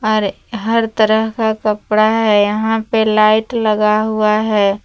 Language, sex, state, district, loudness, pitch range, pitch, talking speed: Hindi, female, Jharkhand, Palamu, -14 LUFS, 215-220 Hz, 215 Hz, 150 wpm